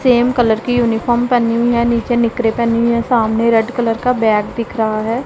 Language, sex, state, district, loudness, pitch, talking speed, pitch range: Hindi, female, Punjab, Pathankot, -15 LUFS, 235 Hz, 230 wpm, 225-240 Hz